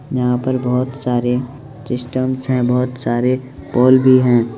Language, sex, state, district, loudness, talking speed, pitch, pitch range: Maithili, male, Bihar, Supaul, -16 LUFS, 145 wpm, 125 Hz, 125-130 Hz